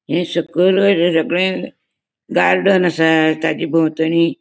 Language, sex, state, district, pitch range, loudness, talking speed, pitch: Konkani, female, Goa, North and South Goa, 160-180 Hz, -15 LUFS, 95 wpm, 170 Hz